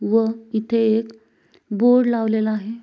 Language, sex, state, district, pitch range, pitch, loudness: Marathi, female, Maharashtra, Sindhudurg, 220-230 Hz, 225 Hz, -19 LUFS